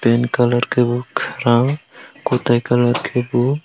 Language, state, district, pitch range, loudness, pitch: Kokborok, Tripura, West Tripura, 120-125 Hz, -18 LUFS, 120 Hz